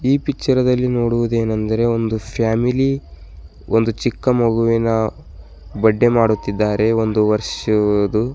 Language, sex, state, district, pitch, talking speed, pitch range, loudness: Kannada, male, Karnataka, Bidar, 115 Hz, 95 wpm, 105-120 Hz, -18 LUFS